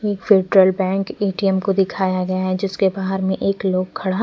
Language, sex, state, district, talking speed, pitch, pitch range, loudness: Hindi, female, Chandigarh, Chandigarh, 185 wpm, 190 Hz, 190-195 Hz, -19 LUFS